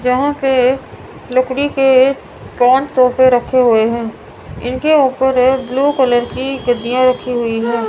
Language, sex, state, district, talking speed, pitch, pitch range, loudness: Hindi, female, Chandigarh, Chandigarh, 150 wpm, 255 Hz, 245-265 Hz, -14 LUFS